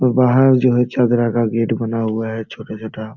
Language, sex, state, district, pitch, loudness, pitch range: Hindi, male, Bihar, Jamui, 115 Hz, -16 LUFS, 110-125 Hz